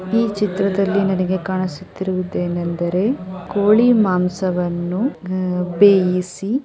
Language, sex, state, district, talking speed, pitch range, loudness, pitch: Kannada, female, Karnataka, Chamarajanagar, 80 wpm, 180-205 Hz, -18 LUFS, 185 Hz